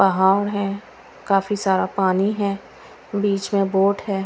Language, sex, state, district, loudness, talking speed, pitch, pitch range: Hindi, female, Haryana, Charkhi Dadri, -20 LUFS, 140 wpm, 195 Hz, 195-200 Hz